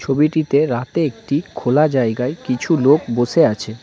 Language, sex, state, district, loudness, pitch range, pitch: Bengali, male, West Bengal, Cooch Behar, -17 LUFS, 120-155 Hz, 135 Hz